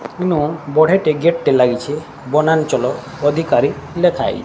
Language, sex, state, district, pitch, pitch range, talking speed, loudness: Odia, female, Odisha, Sambalpur, 155 Hz, 140-165 Hz, 135 wpm, -16 LUFS